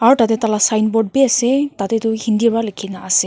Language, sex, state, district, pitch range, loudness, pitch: Nagamese, female, Nagaland, Kohima, 215-230 Hz, -16 LUFS, 225 Hz